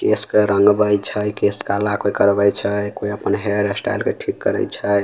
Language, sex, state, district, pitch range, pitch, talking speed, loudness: Maithili, male, Bihar, Samastipur, 100-105 Hz, 105 Hz, 200 wpm, -18 LUFS